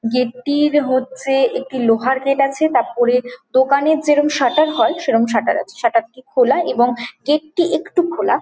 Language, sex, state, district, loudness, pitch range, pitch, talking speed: Bengali, female, West Bengal, Jhargram, -17 LUFS, 245-295 Hz, 265 Hz, 180 wpm